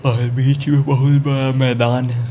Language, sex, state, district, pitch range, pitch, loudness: Hindi, male, Chhattisgarh, Raipur, 120-140 Hz, 130 Hz, -16 LUFS